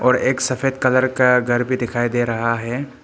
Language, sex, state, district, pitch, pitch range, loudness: Hindi, male, Arunachal Pradesh, Papum Pare, 125 Hz, 120-130 Hz, -18 LUFS